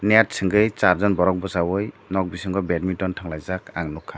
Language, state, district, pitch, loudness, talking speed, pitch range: Kokborok, Tripura, Dhalai, 95 Hz, -22 LUFS, 145 wpm, 90-100 Hz